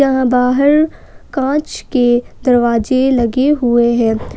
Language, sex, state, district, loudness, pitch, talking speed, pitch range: Hindi, female, Jharkhand, Ranchi, -14 LUFS, 250 Hz, 110 wpm, 240-270 Hz